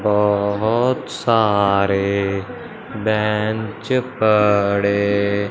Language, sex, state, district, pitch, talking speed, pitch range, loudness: Hindi, male, Punjab, Fazilka, 105 Hz, 45 wpm, 100-110 Hz, -18 LUFS